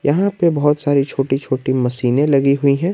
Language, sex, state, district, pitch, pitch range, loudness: Hindi, male, Jharkhand, Garhwa, 140 Hz, 135-145 Hz, -16 LUFS